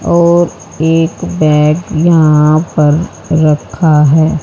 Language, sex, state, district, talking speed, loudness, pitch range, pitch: Hindi, female, Haryana, Charkhi Dadri, 95 wpm, -10 LUFS, 150-170 Hz, 160 Hz